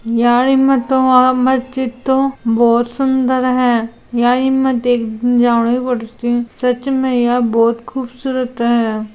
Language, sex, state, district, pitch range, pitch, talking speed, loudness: Hindi, female, Rajasthan, Churu, 235-260 Hz, 245 Hz, 140 wpm, -15 LUFS